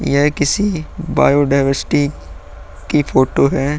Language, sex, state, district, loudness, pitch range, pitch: Hindi, male, Uttar Pradesh, Muzaffarnagar, -16 LUFS, 130-150 Hz, 140 Hz